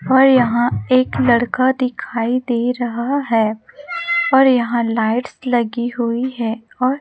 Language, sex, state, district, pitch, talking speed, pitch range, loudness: Hindi, female, Chhattisgarh, Raipur, 245 Hz, 130 wpm, 235-260 Hz, -17 LUFS